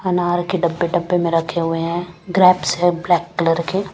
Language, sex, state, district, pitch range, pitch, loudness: Hindi, female, Punjab, Kapurthala, 170-180 Hz, 175 Hz, -18 LUFS